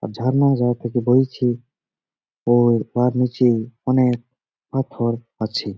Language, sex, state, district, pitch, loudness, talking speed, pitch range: Bengali, male, West Bengal, Jalpaiguri, 120 Hz, -20 LUFS, 115 wpm, 115-130 Hz